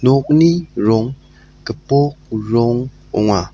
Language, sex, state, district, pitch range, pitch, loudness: Garo, male, Meghalaya, South Garo Hills, 110-145 Hz, 125 Hz, -16 LUFS